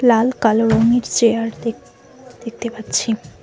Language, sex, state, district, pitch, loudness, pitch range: Bengali, female, West Bengal, Cooch Behar, 230 Hz, -17 LUFS, 225-240 Hz